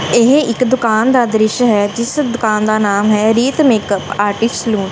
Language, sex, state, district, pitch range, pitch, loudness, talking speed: Punjabi, female, Punjab, Kapurthala, 210-245 Hz, 220 Hz, -13 LUFS, 195 wpm